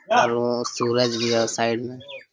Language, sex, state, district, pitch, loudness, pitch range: Hindi, male, Jharkhand, Sahebganj, 120 Hz, -22 LUFS, 115-120 Hz